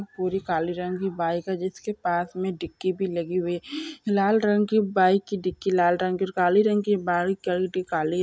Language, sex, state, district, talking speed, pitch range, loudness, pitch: Hindi, female, Bihar, Gopalganj, 225 wpm, 180-200 Hz, -25 LUFS, 185 Hz